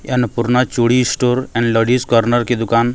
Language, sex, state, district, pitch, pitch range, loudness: Hindi, male, Jharkhand, Deoghar, 120 Hz, 115-125 Hz, -15 LUFS